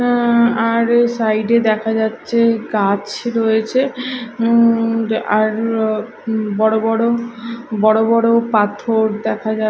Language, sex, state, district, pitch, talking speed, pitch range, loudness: Bengali, female, Odisha, Malkangiri, 225 Hz, 105 wpm, 220-235 Hz, -16 LUFS